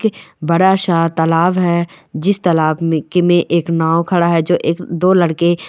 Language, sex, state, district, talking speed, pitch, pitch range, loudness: Hindi, female, Chhattisgarh, Balrampur, 160 wpm, 170 Hz, 165-180 Hz, -14 LUFS